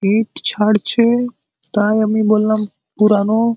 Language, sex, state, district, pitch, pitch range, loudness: Bengali, male, West Bengal, Malda, 215 Hz, 210-225 Hz, -15 LUFS